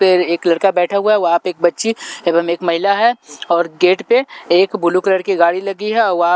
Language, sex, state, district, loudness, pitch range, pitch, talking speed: Hindi, male, Punjab, Pathankot, -15 LUFS, 170-200 Hz, 185 Hz, 235 wpm